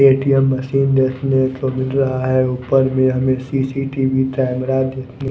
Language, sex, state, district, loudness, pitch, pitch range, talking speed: Hindi, male, Odisha, Nuapada, -17 LUFS, 130 Hz, 130-135 Hz, 160 wpm